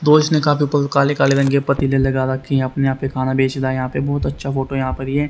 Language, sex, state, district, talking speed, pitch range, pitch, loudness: Hindi, male, Haryana, Rohtak, 315 wpm, 130-140 Hz, 135 Hz, -18 LUFS